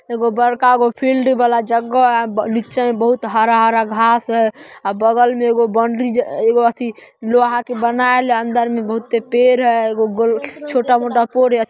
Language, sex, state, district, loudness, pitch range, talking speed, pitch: Magahi, female, Bihar, Samastipur, -15 LUFS, 230-245 Hz, 180 wpm, 235 Hz